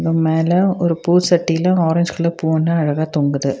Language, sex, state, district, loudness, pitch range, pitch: Tamil, female, Tamil Nadu, Nilgiris, -16 LUFS, 160-175 Hz, 165 Hz